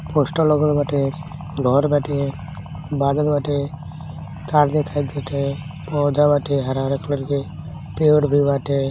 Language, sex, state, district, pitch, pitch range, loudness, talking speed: Bhojpuri, male, Uttar Pradesh, Deoria, 145 Hz, 140-150 Hz, -20 LUFS, 120 wpm